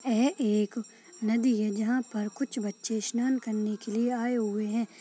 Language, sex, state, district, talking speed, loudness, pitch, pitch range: Hindi, female, Maharashtra, Solapur, 180 wpm, -29 LUFS, 225 Hz, 215-245 Hz